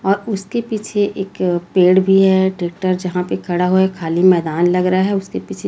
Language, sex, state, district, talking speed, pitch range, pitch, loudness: Hindi, female, Chhattisgarh, Raipur, 210 wpm, 175-195 Hz, 185 Hz, -16 LUFS